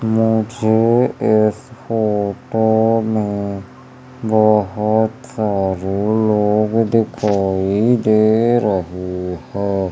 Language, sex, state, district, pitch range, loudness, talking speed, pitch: Hindi, male, Madhya Pradesh, Umaria, 100-110 Hz, -17 LUFS, 65 wpm, 110 Hz